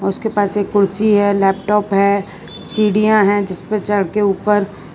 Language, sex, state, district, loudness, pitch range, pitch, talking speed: Hindi, female, Gujarat, Valsad, -16 LUFS, 195-210 Hz, 205 Hz, 170 wpm